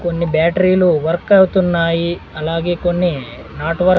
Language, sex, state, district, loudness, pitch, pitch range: Telugu, male, Andhra Pradesh, Sri Satya Sai, -15 LUFS, 170 Hz, 165-180 Hz